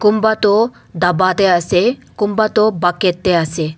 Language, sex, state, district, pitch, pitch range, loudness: Nagamese, male, Nagaland, Dimapur, 190 Hz, 175-215 Hz, -15 LUFS